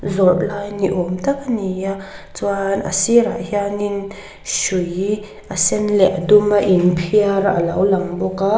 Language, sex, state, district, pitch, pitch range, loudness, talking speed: Mizo, female, Mizoram, Aizawl, 195 Hz, 185-205 Hz, -17 LUFS, 160 wpm